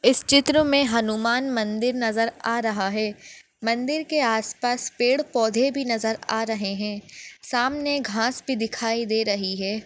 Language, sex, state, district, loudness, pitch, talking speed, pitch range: Hindi, female, Maharashtra, Nagpur, -23 LUFS, 230 Hz, 160 wpm, 220-255 Hz